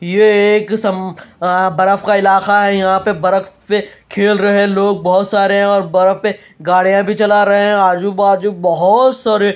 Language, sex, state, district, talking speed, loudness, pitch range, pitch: Hindi, male, Bihar, Katihar, 180 wpm, -13 LUFS, 190-205 Hz, 200 Hz